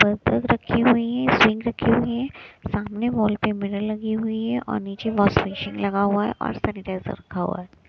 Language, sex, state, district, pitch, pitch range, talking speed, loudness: Hindi, female, Punjab, Kapurthala, 210 Hz, 200-230 Hz, 200 wpm, -23 LUFS